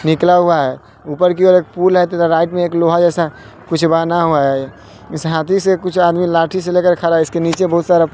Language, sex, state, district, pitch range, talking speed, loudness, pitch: Hindi, male, Bihar, West Champaran, 160-180 Hz, 235 wpm, -14 LUFS, 170 Hz